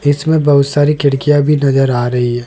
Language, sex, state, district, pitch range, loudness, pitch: Hindi, male, Rajasthan, Jaipur, 135-150 Hz, -12 LUFS, 140 Hz